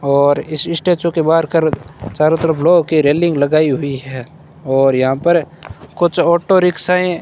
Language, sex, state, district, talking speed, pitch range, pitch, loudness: Hindi, male, Rajasthan, Bikaner, 175 wpm, 140-170 Hz, 155 Hz, -14 LUFS